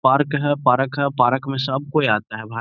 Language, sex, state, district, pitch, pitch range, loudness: Hindi, male, Bihar, Gaya, 135 Hz, 125-145 Hz, -20 LUFS